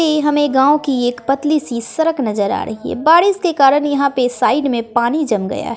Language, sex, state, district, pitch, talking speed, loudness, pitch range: Hindi, female, Bihar, West Champaran, 275 Hz, 240 wpm, -15 LUFS, 240-300 Hz